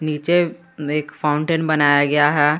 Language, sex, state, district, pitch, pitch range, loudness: Hindi, male, Jharkhand, Garhwa, 150 Hz, 145-155 Hz, -18 LUFS